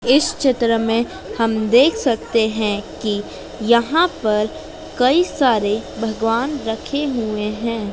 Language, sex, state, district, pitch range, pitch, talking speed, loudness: Hindi, female, Madhya Pradesh, Dhar, 220-255 Hz, 230 Hz, 120 wpm, -18 LUFS